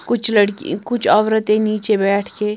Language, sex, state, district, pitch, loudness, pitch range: Hindi, female, Punjab, Kapurthala, 210 Hz, -17 LUFS, 205-215 Hz